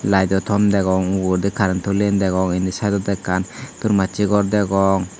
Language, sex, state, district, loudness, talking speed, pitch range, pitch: Chakma, male, Tripura, Dhalai, -19 LUFS, 160 wpm, 95-100 Hz, 95 Hz